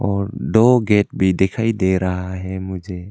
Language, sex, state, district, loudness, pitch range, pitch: Hindi, male, Arunachal Pradesh, Longding, -18 LUFS, 95-110 Hz, 95 Hz